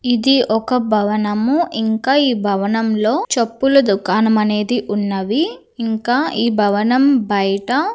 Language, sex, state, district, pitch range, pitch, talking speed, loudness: Telugu, female, Andhra Pradesh, Visakhapatnam, 210-255 Hz, 225 Hz, 105 wpm, -16 LUFS